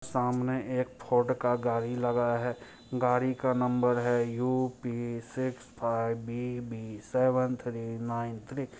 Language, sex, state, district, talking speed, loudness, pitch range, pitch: Hindi, male, Bihar, Muzaffarpur, 145 wpm, -31 LUFS, 120-125 Hz, 125 Hz